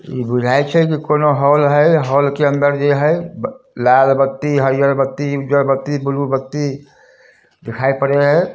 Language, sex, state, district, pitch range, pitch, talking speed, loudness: Hindi, male, Bihar, Samastipur, 135-145 Hz, 140 Hz, 160 wpm, -15 LUFS